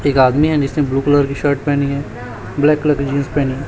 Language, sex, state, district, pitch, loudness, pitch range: Hindi, male, Chhattisgarh, Raipur, 140 Hz, -16 LUFS, 135-145 Hz